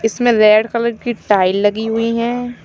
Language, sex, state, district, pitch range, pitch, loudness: Hindi, male, Uttar Pradesh, Shamli, 215-235 Hz, 225 Hz, -15 LUFS